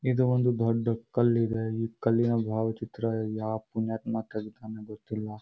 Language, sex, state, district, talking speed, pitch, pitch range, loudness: Kannada, male, Karnataka, Bijapur, 135 wpm, 115 Hz, 110-115 Hz, -29 LUFS